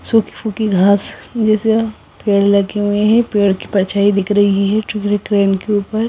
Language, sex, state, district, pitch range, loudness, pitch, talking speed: Hindi, female, Punjab, Kapurthala, 200-215 Hz, -15 LUFS, 205 Hz, 155 wpm